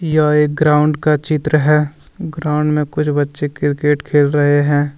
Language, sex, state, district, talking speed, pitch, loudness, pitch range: Hindi, male, Jharkhand, Deoghar, 170 wpm, 150 Hz, -15 LUFS, 145-150 Hz